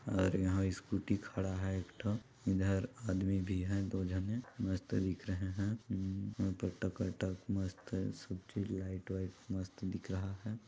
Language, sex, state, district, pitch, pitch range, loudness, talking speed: Hindi, male, Chhattisgarh, Balrampur, 95 Hz, 95-100 Hz, -39 LUFS, 155 wpm